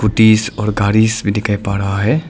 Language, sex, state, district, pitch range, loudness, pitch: Hindi, male, Arunachal Pradesh, Lower Dibang Valley, 100-110 Hz, -15 LUFS, 105 Hz